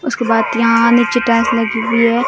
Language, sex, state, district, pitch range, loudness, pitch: Hindi, female, Bihar, Katihar, 230-240 Hz, -13 LUFS, 230 Hz